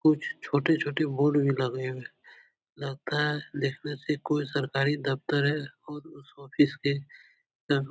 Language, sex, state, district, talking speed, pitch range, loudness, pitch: Hindi, male, Uttar Pradesh, Etah, 145 wpm, 135-150 Hz, -28 LUFS, 145 Hz